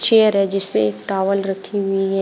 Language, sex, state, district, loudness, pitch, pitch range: Hindi, female, Uttar Pradesh, Shamli, -17 LUFS, 195 Hz, 195-200 Hz